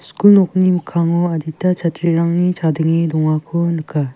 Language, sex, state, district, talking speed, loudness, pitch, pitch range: Garo, female, Meghalaya, West Garo Hills, 115 wpm, -16 LUFS, 170 Hz, 160-180 Hz